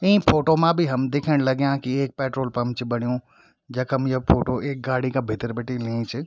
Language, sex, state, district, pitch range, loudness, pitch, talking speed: Garhwali, male, Uttarakhand, Tehri Garhwal, 125-140 Hz, -23 LUFS, 130 Hz, 220 wpm